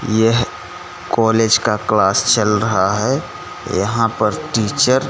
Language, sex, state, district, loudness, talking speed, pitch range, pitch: Hindi, male, Gujarat, Gandhinagar, -16 LUFS, 130 wpm, 105-115 Hz, 110 Hz